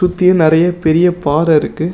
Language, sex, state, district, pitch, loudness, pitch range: Tamil, male, Tamil Nadu, Namakkal, 165 Hz, -12 LUFS, 160-180 Hz